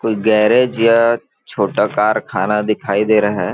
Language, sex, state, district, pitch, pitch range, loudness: Hindi, male, Chhattisgarh, Balrampur, 110 Hz, 105-115 Hz, -15 LUFS